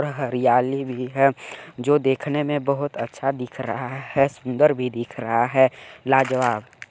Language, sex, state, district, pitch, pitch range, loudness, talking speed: Hindi, male, Chhattisgarh, Balrampur, 135 Hz, 125-140 Hz, -22 LUFS, 155 wpm